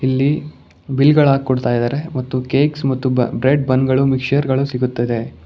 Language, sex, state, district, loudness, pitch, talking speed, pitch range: Kannada, male, Karnataka, Bangalore, -17 LUFS, 130 Hz, 145 wpm, 125-140 Hz